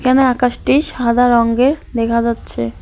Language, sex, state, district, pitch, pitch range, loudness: Bengali, female, West Bengal, Alipurduar, 245 Hz, 235-260 Hz, -15 LUFS